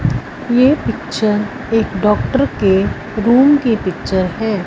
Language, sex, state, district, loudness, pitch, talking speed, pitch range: Hindi, female, Punjab, Fazilka, -15 LUFS, 220 Hz, 105 wpm, 205-245 Hz